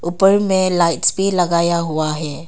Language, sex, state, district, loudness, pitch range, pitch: Hindi, female, Arunachal Pradesh, Papum Pare, -16 LUFS, 165-190 Hz, 170 Hz